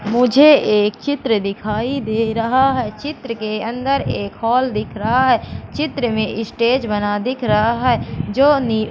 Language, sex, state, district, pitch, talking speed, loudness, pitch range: Hindi, female, Madhya Pradesh, Katni, 230 Hz, 160 wpm, -17 LUFS, 215-260 Hz